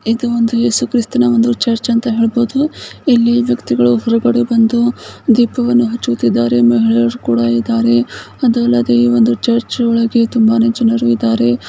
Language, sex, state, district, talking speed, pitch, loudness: Kannada, female, Karnataka, Bijapur, 85 wpm, 225 Hz, -13 LUFS